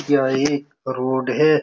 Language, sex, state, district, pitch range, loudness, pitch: Hindi, male, Bihar, Saran, 130-145 Hz, -20 LUFS, 140 Hz